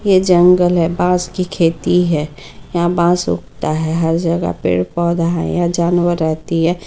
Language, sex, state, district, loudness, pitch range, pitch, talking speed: Hindi, female, Bihar, Muzaffarpur, -15 LUFS, 165-180 Hz, 170 Hz, 185 wpm